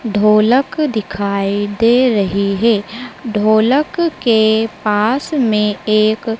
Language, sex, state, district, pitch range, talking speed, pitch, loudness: Hindi, female, Madhya Pradesh, Dhar, 210-245 Hz, 95 wpm, 220 Hz, -14 LUFS